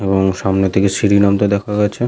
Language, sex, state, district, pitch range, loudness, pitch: Bengali, male, West Bengal, Malda, 95-100 Hz, -15 LUFS, 100 Hz